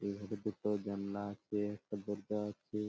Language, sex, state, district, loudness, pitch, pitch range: Bengali, male, West Bengal, Purulia, -40 LUFS, 105 Hz, 100-105 Hz